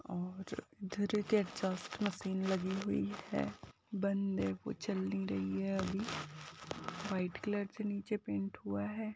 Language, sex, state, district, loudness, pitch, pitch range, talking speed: Hindi, female, Uttar Pradesh, Jyotiba Phule Nagar, -38 LUFS, 190 Hz, 155-205 Hz, 150 wpm